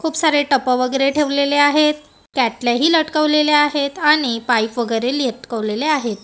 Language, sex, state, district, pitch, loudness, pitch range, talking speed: Marathi, female, Maharashtra, Gondia, 280 Hz, -17 LUFS, 240-300 Hz, 135 wpm